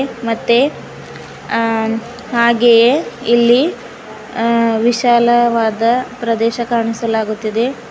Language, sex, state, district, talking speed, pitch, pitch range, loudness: Kannada, female, Karnataka, Bidar, 60 wpm, 235 Hz, 230-240 Hz, -14 LUFS